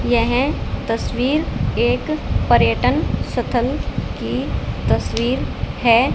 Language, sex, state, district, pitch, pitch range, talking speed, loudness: Hindi, female, Haryana, Charkhi Dadri, 250 Hz, 240-280 Hz, 80 wpm, -19 LUFS